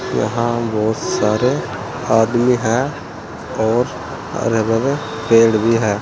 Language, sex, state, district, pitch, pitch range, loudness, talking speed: Hindi, male, Uttar Pradesh, Saharanpur, 115 Hz, 110-120 Hz, -17 LUFS, 110 wpm